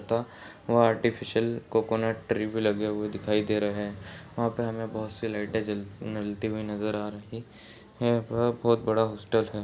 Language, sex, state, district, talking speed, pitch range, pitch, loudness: Hindi, male, Bihar, Kishanganj, 170 wpm, 105-115 Hz, 110 Hz, -29 LUFS